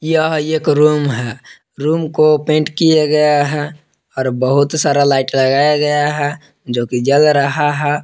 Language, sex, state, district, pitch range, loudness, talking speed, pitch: Hindi, male, Jharkhand, Palamu, 140-155 Hz, -14 LUFS, 165 wpm, 150 Hz